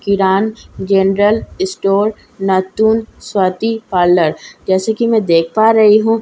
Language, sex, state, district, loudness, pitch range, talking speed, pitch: Hindi, female, Bihar, Katihar, -14 LUFS, 190-220 Hz, 125 wpm, 205 Hz